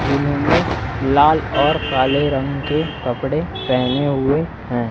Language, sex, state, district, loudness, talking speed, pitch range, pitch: Hindi, male, Chhattisgarh, Raipur, -18 LUFS, 120 wpm, 125-145 Hz, 140 Hz